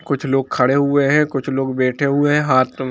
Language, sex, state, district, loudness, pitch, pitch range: Hindi, male, Jharkhand, Jamtara, -17 LUFS, 135 Hz, 130-140 Hz